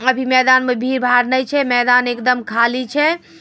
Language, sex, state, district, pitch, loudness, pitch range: Magahi, female, Bihar, Samastipur, 250 Hz, -15 LUFS, 245-260 Hz